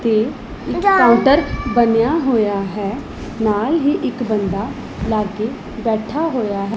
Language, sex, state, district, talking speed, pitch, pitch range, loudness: Punjabi, female, Punjab, Pathankot, 125 wpm, 225 Hz, 210-260 Hz, -17 LUFS